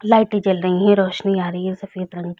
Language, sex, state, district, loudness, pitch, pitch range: Hindi, female, Chhattisgarh, Raigarh, -19 LUFS, 190 Hz, 185-200 Hz